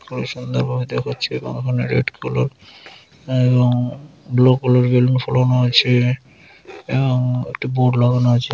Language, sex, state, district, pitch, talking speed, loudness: Bengali, male, West Bengal, Malda, 125 Hz, 125 wpm, -18 LUFS